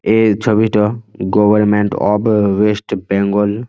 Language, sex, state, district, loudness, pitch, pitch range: Bengali, male, West Bengal, Jhargram, -14 LUFS, 105 Hz, 100-110 Hz